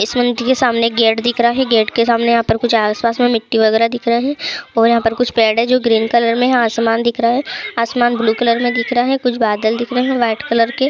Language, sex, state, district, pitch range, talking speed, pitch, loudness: Hindi, female, Uttar Pradesh, Jyotiba Phule Nagar, 230-245 Hz, 280 wpm, 235 Hz, -15 LUFS